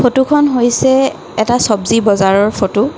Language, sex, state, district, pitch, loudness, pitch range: Assamese, female, Assam, Kamrup Metropolitan, 240 Hz, -12 LUFS, 215-265 Hz